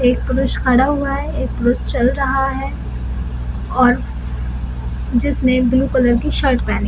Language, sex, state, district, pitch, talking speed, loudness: Hindi, female, Bihar, Samastipur, 240 Hz, 165 wpm, -17 LUFS